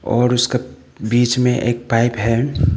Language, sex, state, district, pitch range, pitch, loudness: Hindi, male, Arunachal Pradesh, Papum Pare, 120-125 Hz, 120 Hz, -17 LUFS